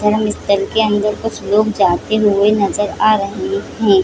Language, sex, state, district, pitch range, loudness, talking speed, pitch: Hindi, female, Chhattisgarh, Bilaspur, 200-215 Hz, -15 LUFS, 150 wpm, 210 Hz